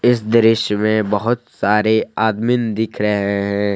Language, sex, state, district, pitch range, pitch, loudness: Hindi, male, Jharkhand, Palamu, 105-115 Hz, 110 Hz, -17 LUFS